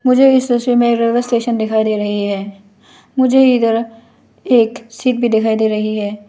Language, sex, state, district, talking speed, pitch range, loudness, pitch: Hindi, female, Arunachal Pradesh, Lower Dibang Valley, 180 wpm, 215-245 Hz, -15 LUFS, 230 Hz